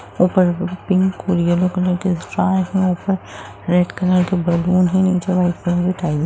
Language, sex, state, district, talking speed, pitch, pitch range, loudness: Bhojpuri, female, Bihar, Saran, 210 wpm, 180 Hz, 175-185 Hz, -18 LUFS